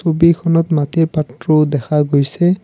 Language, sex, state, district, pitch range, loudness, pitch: Assamese, male, Assam, Kamrup Metropolitan, 145-170 Hz, -15 LUFS, 155 Hz